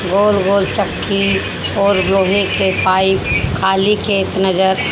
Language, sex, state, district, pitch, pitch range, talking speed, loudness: Hindi, female, Haryana, Charkhi Dadri, 190 Hz, 185-200 Hz, 120 wpm, -15 LUFS